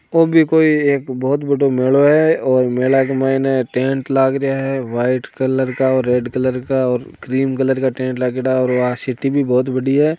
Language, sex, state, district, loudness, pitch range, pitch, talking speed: Hindi, male, Rajasthan, Nagaur, -16 LUFS, 130-135 Hz, 130 Hz, 200 wpm